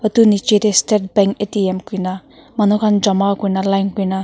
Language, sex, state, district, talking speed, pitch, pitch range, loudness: Nagamese, female, Nagaland, Kohima, 185 wpm, 200 Hz, 195-215 Hz, -16 LUFS